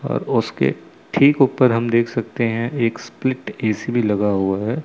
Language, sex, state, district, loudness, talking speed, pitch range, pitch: Hindi, male, Chandigarh, Chandigarh, -19 LUFS, 185 wpm, 110-130 Hz, 115 Hz